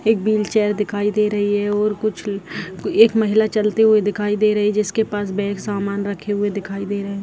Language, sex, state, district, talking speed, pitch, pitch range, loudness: Hindi, female, Bihar, Jahanabad, 230 wpm, 205 Hz, 200-215 Hz, -19 LUFS